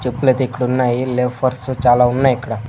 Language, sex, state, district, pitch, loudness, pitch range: Telugu, male, Andhra Pradesh, Sri Satya Sai, 125 Hz, -16 LUFS, 125-130 Hz